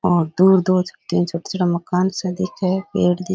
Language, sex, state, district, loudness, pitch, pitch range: Rajasthani, male, Rajasthan, Nagaur, -19 LUFS, 185 Hz, 175-185 Hz